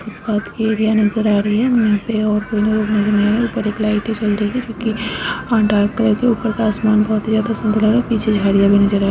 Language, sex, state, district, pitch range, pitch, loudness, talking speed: Bhojpuri, female, Uttar Pradesh, Gorakhpur, 210-220 Hz, 215 Hz, -16 LUFS, 290 wpm